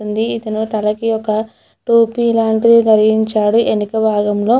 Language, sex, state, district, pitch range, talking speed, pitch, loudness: Telugu, female, Andhra Pradesh, Chittoor, 215-230 Hz, 115 wpm, 220 Hz, -14 LUFS